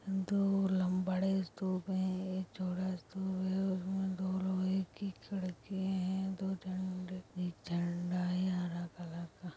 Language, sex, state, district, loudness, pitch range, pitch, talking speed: Hindi, female, Bihar, Samastipur, -37 LUFS, 180-190 Hz, 185 Hz, 145 wpm